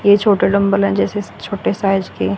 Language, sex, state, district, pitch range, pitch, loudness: Hindi, female, Haryana, Rohtak, 195-205 Hz, 200 Hz, -16 LUFS